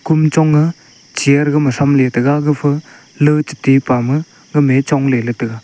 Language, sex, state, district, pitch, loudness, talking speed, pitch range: Wancho, male, Arunachal Pradesh, Longding, 145 Hz, -14 LUFS, 140 wpm, 135-150 Hz